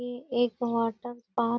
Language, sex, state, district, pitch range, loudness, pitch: Hindi, female, Bihar, Gaya, 235-245 Hz, -29 LUFS, 240 Hz